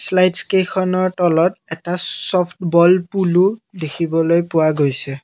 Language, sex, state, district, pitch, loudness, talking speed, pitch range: Assamese, male, Assam, Kamrup Metropolitan, 175 Hz, -16 LUFS, 105 wpm, 165-185 Hz